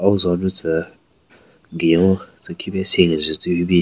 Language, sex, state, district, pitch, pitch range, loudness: Rengma, male, Nagaland, Kohima, 90 Hz, 80-95 Hz, -19 LUFS